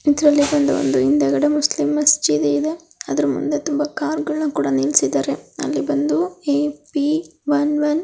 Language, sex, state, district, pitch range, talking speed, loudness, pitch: Kannada, female, Karnataka, Raichur, 285-310 Hz, 155 wpm, -19 LUFS, 295 Hz